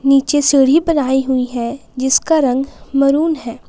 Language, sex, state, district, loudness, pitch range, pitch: Hindi, female, Jharkhand, Palamu, -15 LUFS, 260-290 Hz, 275 Hz